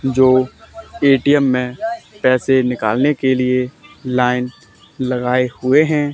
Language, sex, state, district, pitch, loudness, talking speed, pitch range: Hindi, male, Haryana, Charkhi Dadri, 130 Hz, -16 LUFS, 105 wpm, 125-145 Hz